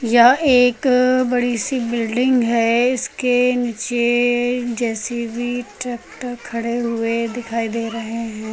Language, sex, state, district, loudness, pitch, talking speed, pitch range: Hindi, female, Uttar Pradesh, Lucknow, -19 LUFS, 240 Hz, 110 wpm, 230-245 Hz